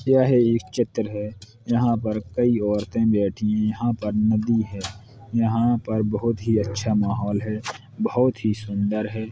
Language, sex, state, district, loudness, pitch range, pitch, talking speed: Hindi, male, Uttar Pradesh, Hamirpur, -23 LUFS, 105-115 Hz, 110 Hz, 160 wpm